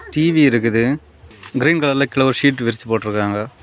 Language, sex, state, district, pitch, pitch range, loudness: Tamil, male, Tamil Nadu, Kanyakumari, 130 Hz, 115-140 Hz, -17 LUFS